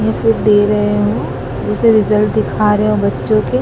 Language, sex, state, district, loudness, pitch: Hindi, male, Madhya Pradesh, Dhar, -14 LUFS, 125 Hz